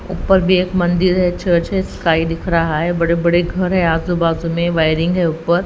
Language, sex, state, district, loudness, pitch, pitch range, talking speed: Hindi, female, Haryana, Rohtak, -16 LUFS, 170 Hz, 165-180 Hz, 200 wpm